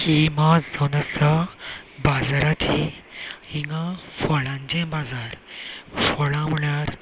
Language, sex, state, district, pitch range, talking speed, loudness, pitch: Konkani, male, Goa, North and South Goa, 145-155 Hz, 95 wpm, -23 LUFS, 150 Hz